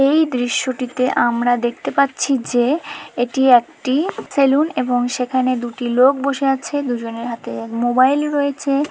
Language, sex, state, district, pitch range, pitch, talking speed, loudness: Bengali, female, West Bengal, Dakshin Dinajpur, 245-280 Hz, 255 Hz, 140 wpm, -18 LUFS